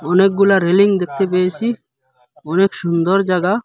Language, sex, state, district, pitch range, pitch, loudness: Bengali, female, Assam, Hailakandi, 170-195 Hz, 185 Hz, -16 LUFS